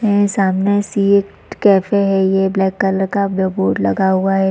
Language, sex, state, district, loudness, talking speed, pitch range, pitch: Hindi, female, Chhattisgarh, Rajnandgaon, -15 LUFS, 185 wpm, 190-200 Hz, 195 Hz